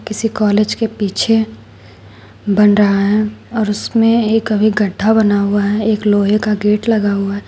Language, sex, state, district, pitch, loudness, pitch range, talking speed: Hindi, female, Uttar Pradesh, Shamli, 210 Hz, -14 LUFS, 200-220 Hz, 175 wpm